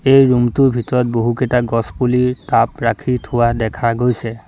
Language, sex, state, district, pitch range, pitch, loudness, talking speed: Assamese, male, Assam, Sonitpur, 115-125 Hz, 125 Hz, -16 LUFS, 135 wpm